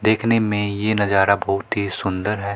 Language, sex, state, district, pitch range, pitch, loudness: Hindi, male, Haryana, Rohtak, 100-110 Hz, 100 Hz, -20 LUFS